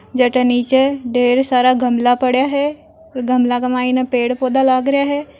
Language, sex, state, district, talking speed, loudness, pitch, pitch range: Marwari, female, Rajasthan, Churu, 165 wpm, -15 LUFS, 255 Hz, 250-270 Hz